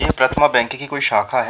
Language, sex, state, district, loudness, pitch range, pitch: Hindi, male, Uttar Pradesh, Jyotiba Phule Nagar, -17 LUFS, 120-145 Hz, 130 Hz